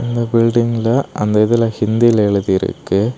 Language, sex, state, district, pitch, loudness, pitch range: Tamil, male, Tamil Nadu, Kanyakumari, 115 Hz, -15 LUFS, 105-120 Hz